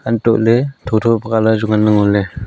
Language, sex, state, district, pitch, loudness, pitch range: Wancho, male, Arunachal Pradesh, Longding, 110 Hz, -14 LUFS, 105-115 Hz